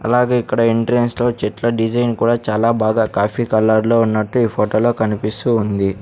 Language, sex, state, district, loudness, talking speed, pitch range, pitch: Telugu, male, Andhra Pradesh, Sri Satya Sai, -16 LUFS, 170 wpm, 110-120 Hz, 115 Hz